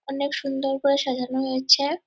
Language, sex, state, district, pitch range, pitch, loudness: Bengali, female, West Bengal, Purulia, 265-280 Hz, 275 Hz, -23 LUFS